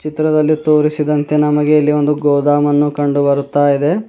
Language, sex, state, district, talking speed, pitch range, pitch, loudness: Kannada, male, Karnataka, Bidar, 130 wpm, 145-150 Hz, 150 Hz, -14 LUFS